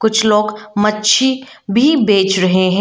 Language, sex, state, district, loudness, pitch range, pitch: Hindi, female, Arunachal Pradesh, Lower Dibang Valley, -13 LUFS, 205-230 Hz, 215 Hz